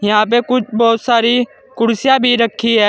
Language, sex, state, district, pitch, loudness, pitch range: Hindi, male, Uttar Pradesh, Saharanpur, 230 Hz, -14 LUFS, 225-245 Hz